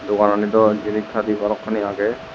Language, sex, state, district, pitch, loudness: Chakma, male, Tripura, West Tripura, 105 Hz, -19 LUFS